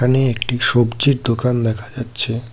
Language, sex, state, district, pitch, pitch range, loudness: Bengali, male, West Bengal, Cooch Behar, 120 Hz, 115-125 Hz, -18 LUFS